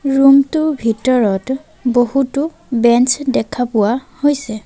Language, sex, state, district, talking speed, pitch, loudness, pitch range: Assamese, female, Assam, Sonitpur, 105 wpm, 265 Hz, -15 LUFS, 235-275 Hz